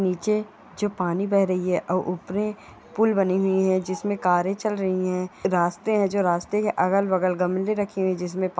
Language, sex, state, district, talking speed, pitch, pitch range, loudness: Hindi, female, Chhattisgarh, Rajnandgaon, 190 wpm, 190 Hz, 185-205 Hz, -24 LUFS